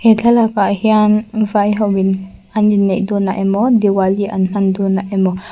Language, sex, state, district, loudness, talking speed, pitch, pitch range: Mizo, female, Mizoram, Aizawl, -14 LUFS, 195 wpm, 200 Hz, 195-215 Hz